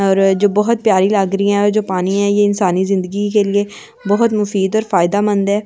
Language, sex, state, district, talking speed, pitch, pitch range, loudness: Hindi, female, Delhi, New Delhi, 220 wpm, 205 Hz, 195-205 Hz, -15 LUFS